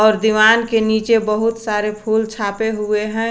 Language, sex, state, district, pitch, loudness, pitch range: Hindi, female, Jharkhand, Garhwa, 220 Hz, -16 LUFS, 215-225 Hz